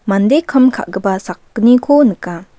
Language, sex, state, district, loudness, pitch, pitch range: Garo, female, Meghalaya, West Garo Hills, -13 LUFS, 225 Hz, 190-260 Hz